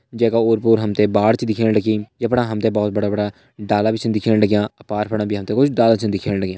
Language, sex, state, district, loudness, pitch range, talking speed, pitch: Hindi, male, Uttarakhand, Uttarkashi, -18 LUFS, 105-115 Hz, 290 wpm, 110 Hz